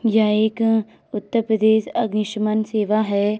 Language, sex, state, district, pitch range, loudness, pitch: Hindi, female, Uttar Pradesh, Etah, 215-220 Hz, -20 LUFS, 215 Hz